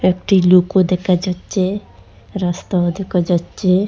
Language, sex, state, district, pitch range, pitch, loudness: Bengali, female, Assam, Hailakandi, 180-190 Hz, 185 Hz, -16 LUFS